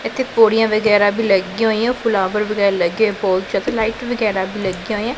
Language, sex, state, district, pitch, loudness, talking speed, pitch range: Punjabi, female, Punjab, Pathankot, 215 Hz, -17 LUFS, 175 wpm, 200-225 Hz